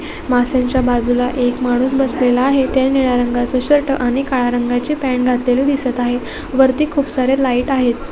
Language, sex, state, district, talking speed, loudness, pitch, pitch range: Marathi, female, Maharashtra, Solapur, 165 wpm, -16 LUFS, 255 Hz, 245-270 Hz